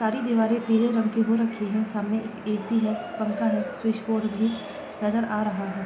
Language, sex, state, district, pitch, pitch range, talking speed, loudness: Hindi, female, Bihar, Gopalganj, 220 Hz, 210-225 Hz, 225 wpm, -26 LUFS